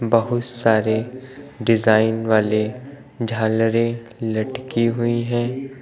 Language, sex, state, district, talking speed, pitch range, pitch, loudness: Hindi, male, Uttar Pradesh, Lucknow, 80 wpm, 110-120 Hz, 115 Hz, -20 LUFS